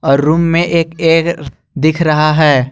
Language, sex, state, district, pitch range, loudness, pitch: Hindi, male, Jharkhand, Garhwa, 150-165 Hz, -12 LUFS, 160 Hz